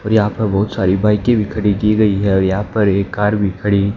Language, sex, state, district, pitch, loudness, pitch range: Hindi, male, Haryana, Jhajjar, 105 Hz, -16 LUFS, 100-105 Hz